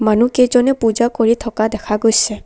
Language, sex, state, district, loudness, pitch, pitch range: Assamese, female, Assam, Kamrup Metropolitan, -15 LUFS, 225 Hz, 220-240 Hz